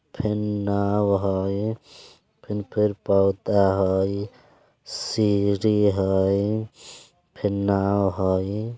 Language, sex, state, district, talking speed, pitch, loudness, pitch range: Bajjika, male, Bihar, Vaishali, 80 wpm, 100 Hz, -23 LUFS, 100-105 Hz